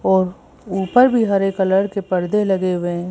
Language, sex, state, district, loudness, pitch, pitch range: Hindi, female, Madhya Pradesh, Bhopal, -18 LUFS, 190 Hz, 185-200 Hz